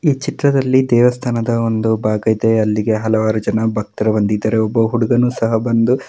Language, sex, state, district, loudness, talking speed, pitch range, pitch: Kannada, male, Karnataka, Mysore, -16 LUFS, 160 wpm, 110-120 Hz, 115 Hz